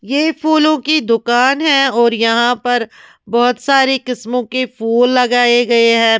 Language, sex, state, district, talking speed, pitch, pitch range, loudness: Hindi, female, Maharashtra, Mumbai Suburban, 155 wpm, 245 Hz, 235-270 Hz, -13 LUFS